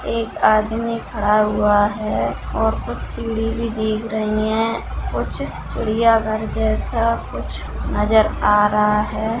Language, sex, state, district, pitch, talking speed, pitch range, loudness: Hindi, female, Bihar, Darbhanga, 215 Hz, 130 wpm, 210-225 Hz, -19 LUFS